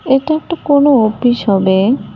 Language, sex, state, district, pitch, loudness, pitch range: Bengali, male, West Bengal, Cooch Behar, 260 Hz, -12 LUFS, 220-290 Hz